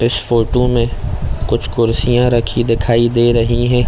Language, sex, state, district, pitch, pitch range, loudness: Hindi, male, Chhattisgarh, Korba, 120 Hz, 115-120 Hz, -14 LUFS